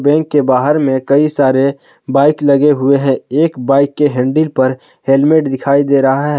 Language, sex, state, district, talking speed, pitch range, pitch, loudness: Hindi, male, Jharkhand, Palamu, 190 wpm, 135-150 Hz, 140 Hz, -12 LUFS